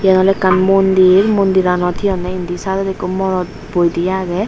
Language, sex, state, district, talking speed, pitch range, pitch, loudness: Chakma, female, Tripura, Unakoti, 200 wpm, 180-195 Hz, 185 Hz, -14 LUFS